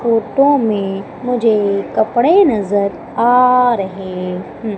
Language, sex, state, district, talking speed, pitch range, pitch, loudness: Hindi, female, Madhya Pradesh, Umaria, 100 wpm, 200-250 Hz, 220 Hz, -15 LUFS